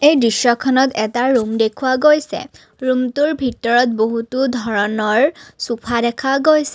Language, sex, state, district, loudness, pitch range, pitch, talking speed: Assamese, female, Assam, Kamrup Metropolitan, -16 LUFS, 230-275 Hz, 255 Hz, 115 wpm